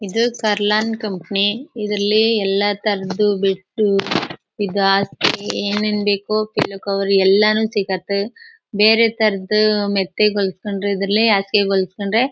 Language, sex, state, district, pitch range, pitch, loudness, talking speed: Kannada, female, Karnataka, Chamarajanagar, 195-215 Hz, 205 Hz, -18 LUFS, 110 wpm